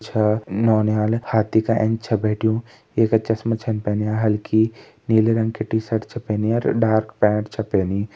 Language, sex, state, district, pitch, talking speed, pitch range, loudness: Hindi, male, Uttarakhand, Tehri Garhwal, 110 Hz, 160 wpm, 105-115 Hz, -21 LUFS